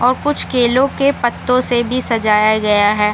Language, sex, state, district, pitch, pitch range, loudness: Hindi, female, Bihar, Samastipur, 240 Hz, 215-255 Hz, -15 LUFS